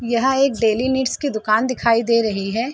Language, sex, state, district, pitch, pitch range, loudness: Hindi, female, Bihar, Sitamarhi, 235 Hz, 220-260 Hz, -18 LUFS